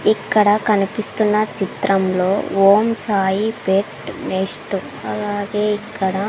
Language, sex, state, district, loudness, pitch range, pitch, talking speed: Telugu, female, Andhra Pradesh, Sri Satya Sai, -18 LUFS, 195-215 Hz, 205 Hz, 85 wpm